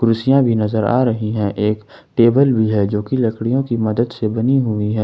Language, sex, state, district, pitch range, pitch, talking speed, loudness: Hindi, male, Jharkhand, Ranchi, 110-125 Hz, 115 Hz, 225 wpm, -17 LUFS